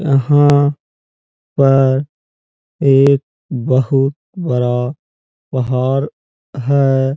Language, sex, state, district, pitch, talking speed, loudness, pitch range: Hindi, male, Uttar Pradesh, Jalaun, 135 Hz, 60 wpm, -15 LUFS, 125-140 Hz